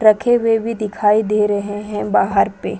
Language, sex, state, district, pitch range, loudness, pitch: Hindi, female, Chhattisgarh, Balrampur, 210-225 Hz, -17 LUFS, 215 Hz